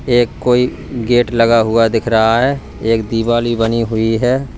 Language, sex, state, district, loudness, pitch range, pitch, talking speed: Hindi, male, Uttar Pradesh, Lalitpur, -14 LUFS, 115-120 Hz, 115 Hz, 185 wpm